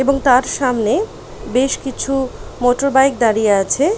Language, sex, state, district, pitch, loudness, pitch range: Bengali, female, West Bengal, Paschim Medinipur, 260 Hz, -16 LUFS, 240-270 Hz